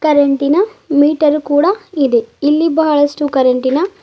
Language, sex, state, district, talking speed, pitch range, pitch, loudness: Kannada, female, Karnataka, Bidar, 105 wpm, 280-320 Hz, 295 Hz, -13 LUFS